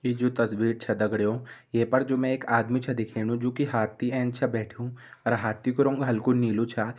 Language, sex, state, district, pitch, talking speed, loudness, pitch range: Garhwali, male, Uttarakhand, Uttarkashi, 120 Hz, 225 wpm, -27 LUFS, 115-125 Hz